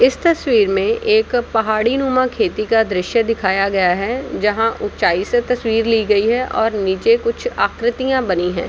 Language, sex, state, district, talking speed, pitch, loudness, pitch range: Hindi, female, Bihar, Samastipur, 165 wpm, 230 Hz, -17 LUFS, 210-260 Hz